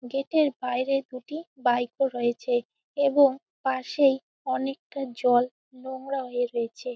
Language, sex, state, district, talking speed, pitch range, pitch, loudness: Bengali, female, West Bengal, Jalpaiguri, 110 wpm, 245-275 Hz, 265 Hz, -26 LUFS